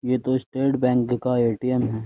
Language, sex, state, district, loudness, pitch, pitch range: Hindi, male, Uttar Pradesh, Jyotiba Phule Nagar, -22 LUFS, 125 Hz, 120-130 Hz